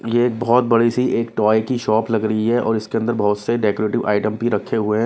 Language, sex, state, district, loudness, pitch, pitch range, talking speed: Hindi, male, Bihar, Patna, -19 LUFS, 115 Hz, 110-120 Hz, 260 wpm